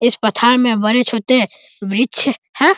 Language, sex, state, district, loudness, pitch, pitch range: Hindi, male, Bihar, East Champaran, -15 LUFS, 240 Hz, 220-255 Hz